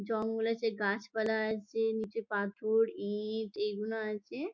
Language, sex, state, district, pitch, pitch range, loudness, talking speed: Bengali, female, West Bengal, Jhargram, 220 Hz, 210-225 Hz, -34 LUFS, 120 wpm